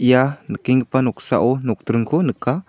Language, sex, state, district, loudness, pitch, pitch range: Garo, male, Meghalaya, South Garo Hills, -19 LUFS, 125 Hz, 120-130 Hz